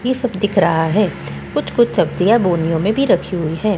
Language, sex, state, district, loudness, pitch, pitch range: Hindi, female, Bihar, Katihar, -16 LUFS, 205 Hz, 170-235 Hz